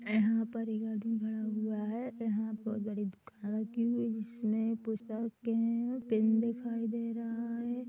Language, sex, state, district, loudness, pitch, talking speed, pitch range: Hindi, female, Chhattisgarh, Bilaspur, -35 LUFS, 225 Hz, 160 wpm, 220-230 Hz